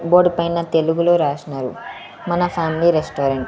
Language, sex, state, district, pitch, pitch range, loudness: Telugu, female, Andhra Pradesh, Sri Satya Sai, 165 Hz, 145-170 Hz, -18 LUFS